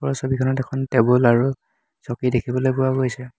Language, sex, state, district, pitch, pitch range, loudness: Assamese, male, Assam, Hailakandi, 130 Hz, 120-130 Hz, -20 LUFS